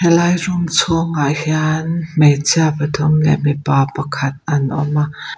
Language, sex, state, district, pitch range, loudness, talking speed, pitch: Mizo, female, Mizoram, Aizawl, 145-165 Hz, -16 LUFS, 145 wpm, 150 Hz